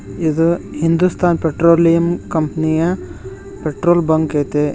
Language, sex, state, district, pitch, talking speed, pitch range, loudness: Kannada, male, Karnataka, Koppal, 160 Hz, 100 wpm, 155-170 Hz, -16 LUFS